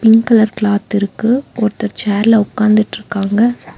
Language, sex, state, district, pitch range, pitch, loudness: Tamil, female, Tamil Nadu, Nilgiris, 205-225 Hz, 215 Hz, -14 LUFS